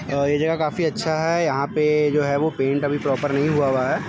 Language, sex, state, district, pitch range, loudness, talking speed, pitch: Hindi, male, Bihar, Muzaffarpur, 140-155 Hz, -21 LUFS, 235 wpm, 150 Hz